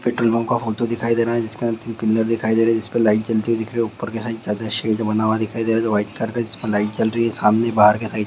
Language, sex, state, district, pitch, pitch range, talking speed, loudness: Hindi, male, Bihar, Sitamarhi, 115 Hz, 110-115 Hz, 340 wpm, -20 LUFS